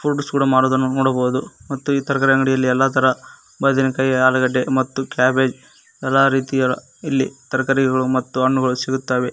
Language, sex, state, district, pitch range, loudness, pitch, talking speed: Kannada, male, Karnataka, Koppal, 130-135 Hz, -18 LUFS, 130 Hz, 135 wpm